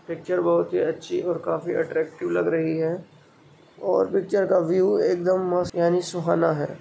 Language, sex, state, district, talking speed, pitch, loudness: Hindi, male, Bihar, Bhagalpur, 165 wpm, 180 Hz, -23 LUFS